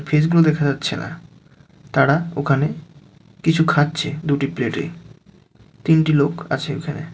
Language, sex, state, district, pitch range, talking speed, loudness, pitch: Bengali, male, West Bengal, Alipurduar, 140-160 Hz, 135 wpm, -19 LUFS, 150 Hz